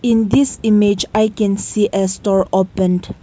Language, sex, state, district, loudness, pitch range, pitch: English, female, Nagaland, Kohima, -16 LUFS, 190-220 Hz, 205 Hz